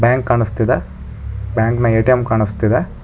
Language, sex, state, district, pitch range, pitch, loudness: Kannada, male, Karnataka, Bangalore, 100-120 Hz, 110 Hz, -16 LUFS